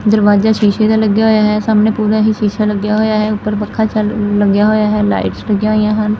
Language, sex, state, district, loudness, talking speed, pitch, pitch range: Punjabi, female, Punjab, Fazilka, -13 LUFS, 215 wpm, 215 Hz, 210-215 Hz